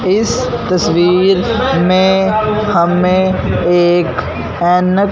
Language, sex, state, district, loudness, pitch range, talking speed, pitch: Hindi, male, Punjab, Fazilka, -12 LUFS, 175-195 Hz, 70 wpm, 185 Hz